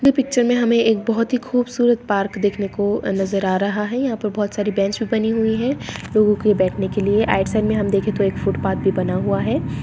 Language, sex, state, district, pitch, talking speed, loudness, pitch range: Hindi, female, Bihar, Madhepura, 215 Hz, 240 wpm, -19 LUFS, 200-235 Hz